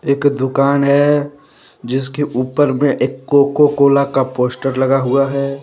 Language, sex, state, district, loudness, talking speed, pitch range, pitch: Hindi, male, Jharkhand, Deoghar, -15 LUFS, 150 wpm, 130-145 Hz, 140 Hz